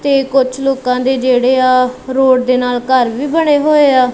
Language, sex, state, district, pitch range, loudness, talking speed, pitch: Punjabi, female, Punjab, Kapurthala, 255-270 Hz, -12 LUFS, 205 wpm, 260 Hz